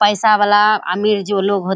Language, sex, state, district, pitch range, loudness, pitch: Hindi, female, Bihar, Kishanganj, 200-210 Hz, -14 LUFS, 205 Hz